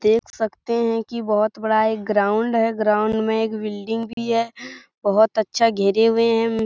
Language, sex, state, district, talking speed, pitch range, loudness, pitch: Hindi, female, Bihar, Saran, 190 wpm, 215-230 Hz, -20 LUFS, 220 Hz